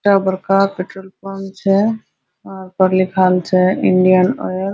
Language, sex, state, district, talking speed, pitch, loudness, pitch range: Hindi, female, Bihar, Araria, 140 wpm, 190 Hz, -15 LUFS, 185-195 Hz